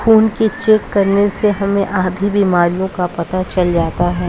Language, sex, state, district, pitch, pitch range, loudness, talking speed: Hindi, female, Uttar Pradesh, Jalaun, 195 Hz, 180-205 Hz, -15 LUFS, 180 wpm